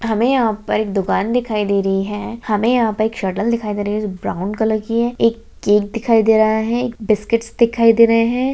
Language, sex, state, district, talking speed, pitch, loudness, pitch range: Hindi, female, Bihar, Jahanabad, 245 wpm, 220 Hz, -17 LUFS, 210-230 Hz